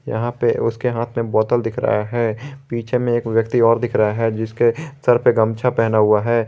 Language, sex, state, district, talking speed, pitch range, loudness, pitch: Hindi, male, Jharkhand, Garhwa, 220 wpm, 110-120 Hz, -18 LUFS, 115 Hz